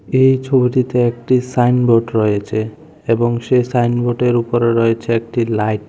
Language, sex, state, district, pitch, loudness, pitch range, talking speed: Bengali, male, Tripura, West Tripura, 120 Hz, -16 LUFS, 115-125 Hz, 130 wpm